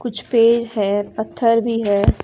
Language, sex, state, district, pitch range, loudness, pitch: Hindi, female, Bihar, West Champaran, 205-235 Hz, -18 LUFS, 230 Hz